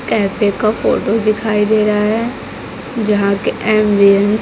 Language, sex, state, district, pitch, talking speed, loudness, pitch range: Hindi, female, Maharashtra, Mumbai Suburban, 215 Hz, 150 wpm, -14 LUFS, 205-220 Hz